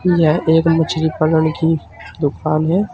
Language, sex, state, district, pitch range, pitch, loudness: Hindi, male, Uttar Pradesh, Saharanpur, 155-165 Hz, 160 Hz, -16 LUFS